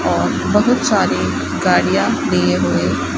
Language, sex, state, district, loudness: Hindi, male, Rajasthan, Bikaner, -16 LUFS